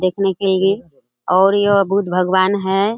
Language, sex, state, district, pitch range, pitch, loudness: Hindi, female, Bihar, Kishanganj, 185-200 Hz, 195 Hz, -16 LUFS